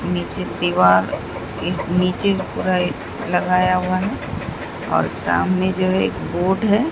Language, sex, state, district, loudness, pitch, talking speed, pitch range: Hindi, female, Bihar, Katihar, -19 LUFS, 185 Hz, 140 wpm, 180-190 Hz